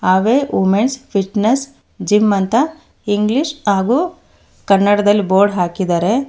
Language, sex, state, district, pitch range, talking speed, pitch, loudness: Kannada, female, Karnataka, Bangalore, 195-260 Hz, 95 wpm, 205 Hz, -15 LUFS